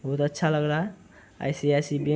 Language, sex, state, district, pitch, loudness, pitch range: Hindi, male, Bihar, Araria, 150 Hz, -26 LUFS, 145-155 Hz